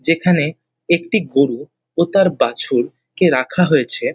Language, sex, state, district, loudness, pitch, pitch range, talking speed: Bengali, male, West Bengal, North 24 Parganas, -17 LUFS, 170 Hz, 150-180 Hz, 130 wpm